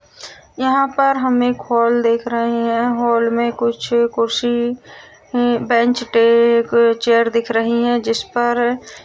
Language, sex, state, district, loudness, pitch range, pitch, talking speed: Hindi, female, Uttar Pradesh, Jalaun, -16 LUFS, 235-240 Hz, 235 Hz, 150 wpm